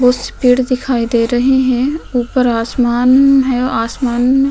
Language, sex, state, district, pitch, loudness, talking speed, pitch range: Hindi, female, Uttar Pradesh, Hamirpur, 250 Hz, -13 LUFS, 160 wpm, 245-260 Hz